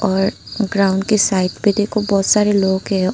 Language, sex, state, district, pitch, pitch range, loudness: Hindi, female, Tripura, Unakoti, 200 Hz, 190-205 Hz, -16 LUFS